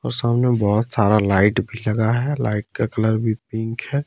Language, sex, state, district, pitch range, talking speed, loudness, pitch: Hindi, male, Jharkhand, Ranchi, 105-120 Hz, 205 wpm, -20 LUFS, 110 Hz